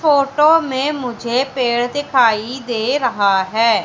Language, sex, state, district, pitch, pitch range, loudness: Hindi, female, Madhya Pradesh, Katni, 250 Hz, 230-280 Hz, -16 LUFS